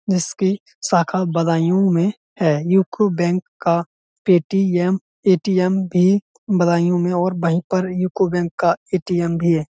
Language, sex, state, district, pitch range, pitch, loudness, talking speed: Hindi, male, Uttar Pradesh, Budaun, 170-190 Hz, 180 Hz, -19 LUFS, 135 wpm